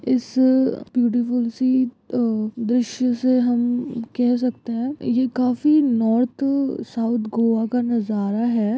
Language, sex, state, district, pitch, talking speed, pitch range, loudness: Hindi, female, Goa, North and South Goa, 245 Hz, 115 wpm, 230-255 Hz, -21 LUFS